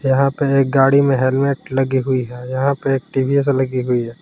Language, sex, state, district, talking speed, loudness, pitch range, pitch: Hindi, male, Jharkhand, Palamu, 225 wpm, -17 LUFS, 130-140 Hz, 135 Hz